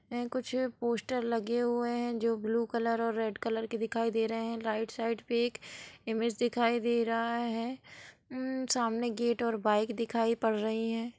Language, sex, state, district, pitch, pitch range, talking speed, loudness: Hindi, female, Bihar, Gopalganj, 230 Hz, 225-240 Hz, 180 wpm, -32 LUFS